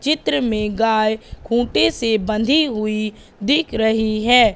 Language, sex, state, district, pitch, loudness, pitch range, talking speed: Hindi, female, Madhya Pradesh, Katni, 220 Hz, -18 LUFS, 215-240 Hz, 130 wpm